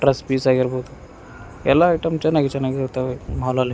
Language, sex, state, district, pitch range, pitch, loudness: Kannada, male, Karnataka, Raichur, 130-140 Hz, 130 Hz, -20 LUFS